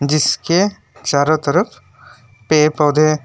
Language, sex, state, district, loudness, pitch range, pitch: Hindi, male, West Bengal, Alipurduar, -16 LUFS, 140-155 Hz, 150 Hz